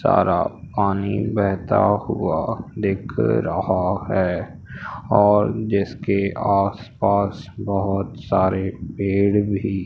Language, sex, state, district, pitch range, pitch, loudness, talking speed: Hindi, male, Madhya Pradesh, Umaria, 100-105 Hz, 100 Hz, -21 LUFS, 85 wpm